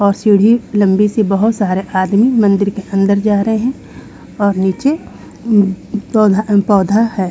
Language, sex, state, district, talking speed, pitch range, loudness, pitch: Hindi, female, Haryana, Rohtak, 155 wpm, 195-215 Hz, -13 LUFS, 205 Hz